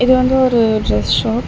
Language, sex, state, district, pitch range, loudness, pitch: Tamil, female, Tamil Nadu, Chennai, 160-255 Hz, -14 LUFS, 235 Hz